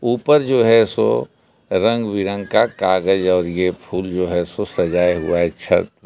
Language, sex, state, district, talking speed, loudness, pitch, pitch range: Hindi, male, Jharkhand, Palamu, 180 wpm, -18 LUFS, 95 Hz, 90-115 Hz